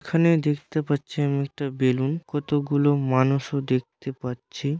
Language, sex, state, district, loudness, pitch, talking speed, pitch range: Bengali, male, West Bengal, Dakshin Dinajpur, -24 LUFS, 140 Hz, 135 wpm, 135-145 Hz